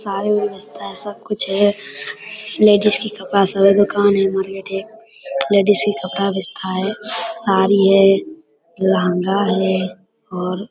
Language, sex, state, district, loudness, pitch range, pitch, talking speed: Hindi, male, Bihar, Darbhanga, -17 LUFS, 190-210 Hz, 195 Hz, 150 wpm